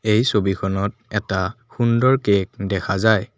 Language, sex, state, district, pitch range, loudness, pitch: Assamese, male, Assam, Kamrup Metropolitan, 95-110 Hz, -20 LUFS, 105 Hz